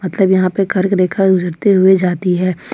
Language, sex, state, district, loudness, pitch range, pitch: Hindi, female, Jharkhand, Ranchi, -14 LUFS, 180-195 Hz, 185 Hz